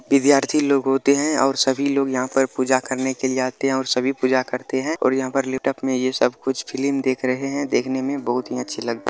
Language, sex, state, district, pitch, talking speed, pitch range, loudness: Maithili, male, Bihar, Madhepura, 130 Hz, 255 wpm, 130-135 Hz, -21 LUFS